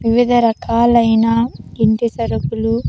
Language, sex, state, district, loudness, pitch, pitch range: Telugu, female, Andhra Pradesh, Sri Satya Sai, -15 LUFS, 230 Hz, 225-235 Hz